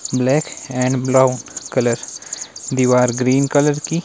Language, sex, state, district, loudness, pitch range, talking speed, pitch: Hindi, male, Himachal Pradesh, Shimla, -18 LUFS, 125-140 Hz, 120 wpm, 130 Hz